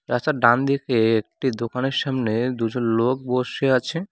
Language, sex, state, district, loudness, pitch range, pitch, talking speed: Bengali, male, West Bengal, Cooch Behar, -22 LUFS, 115-135 Hz, 125 Hz, 130 wpm